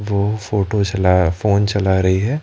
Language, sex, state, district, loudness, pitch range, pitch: Hindi, male, Rajasthan, Jaipur, -17 LUFS, 95-105 Hz, 100 Hz